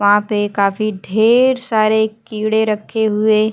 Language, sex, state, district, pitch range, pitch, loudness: Hindi, female, Chhattisgarh, Kabirdham, 210-220 Hz, 215 Hz, -16 LUFS